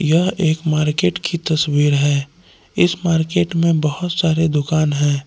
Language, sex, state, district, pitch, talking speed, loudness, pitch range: Hindi, male, Jharkhand, Palamu, 160 Hz, 150 wpm, -17 LUFS, 150-170 Hz